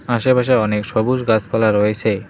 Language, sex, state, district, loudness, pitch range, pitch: Bengali, male, West Bengal, Cooch Behar, -17 LUFS, 105-125 Hz, 110 Hz